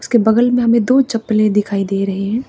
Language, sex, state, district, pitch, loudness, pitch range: Hindi, female, Arunachal Pradesh, Papum Pare, 220 Hz, -15 LUFS, 200-240 Hz